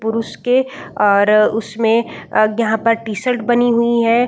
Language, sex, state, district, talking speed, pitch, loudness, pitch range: Hindi, female, Bihar, Saran, 140 wpm, 230 Hz, -16 LUFS, 220-240 Hz